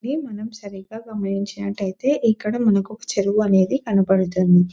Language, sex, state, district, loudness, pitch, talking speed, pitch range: Telugu, female, Telangana, Nalgonda, -20 LUFS, 205 Hz, 125 wpm, 195-225 Hz